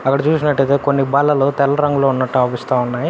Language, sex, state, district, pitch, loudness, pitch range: Telugu, male, Andhra Pradesh, Anantapur, 140 Hz, -16 LUFS, 130-145 Hz